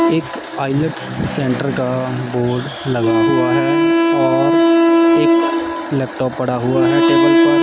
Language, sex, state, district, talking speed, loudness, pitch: Hindi, male, Punjab, Kapurthala, 120 wpm, -15 LUFS, 165 Hz